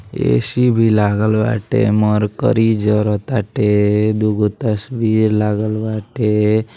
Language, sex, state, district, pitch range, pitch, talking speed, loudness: Bhojpuri, male, Uttar Pradesh, Gorakhpur, 105-110 Hz, 110 Hz, 90 wpm, -16 LUFS